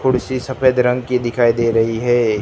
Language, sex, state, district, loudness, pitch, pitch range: Hindi, male, Gujarat, Gandhinagar, -16 LUFS, 120 Hz, 115-125 Hz